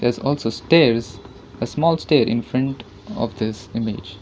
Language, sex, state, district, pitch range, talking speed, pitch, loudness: English, female, Karnataka, Bangalore, 110-135 Hz, 130 wpm, 115 Hz, -20 LUFS